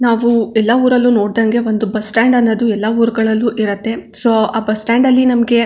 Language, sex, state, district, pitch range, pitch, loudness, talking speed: Kannada, female, Karnataka, Chamarajanagar, 220-235 Hz, 230 Hz, -13 LUFS, 190 wpm